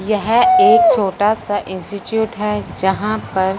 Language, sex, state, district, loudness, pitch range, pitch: Hindi, male, Punjab, Fazilka, -16 LUFS, 195-220 Hz, 210 Hz